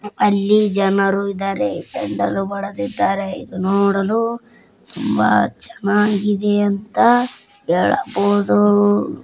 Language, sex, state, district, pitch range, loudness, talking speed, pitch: Kannada, female, Karnataka, Dharwad, 195-215 Hz, -18 LUFS, 50 wpm, 200 Hz